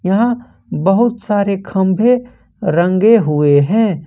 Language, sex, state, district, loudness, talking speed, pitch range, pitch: Hindi, male, Jharkhand, Ranchi, -14 LUFS, 105 wpm, 185-230 Hz, 200 Hz